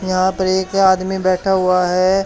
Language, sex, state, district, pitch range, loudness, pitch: Hindi, male, Haryana, Charkhi Dadri, 185-190 Hz, -16 LUFS, 185 Hz